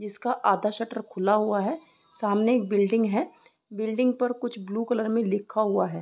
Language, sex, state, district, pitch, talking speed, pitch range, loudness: Hindi, female, Uttar Pradesh, Gorakhpur, 220 Hz, 190 wpm, 205-240 Hz, -26 LUFS